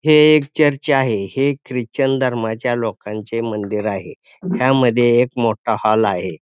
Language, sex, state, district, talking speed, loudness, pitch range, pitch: Marathi, male, Maharashtra, Pune, 140 wpm, -17 LUFS, 110-135 Hz, 120 Hz